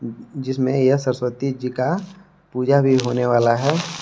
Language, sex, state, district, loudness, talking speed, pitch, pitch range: Hindi, male, Jharkhand, Palamu, -20 LUFS, 150 wpm, 130 Hz, 125-140 Hz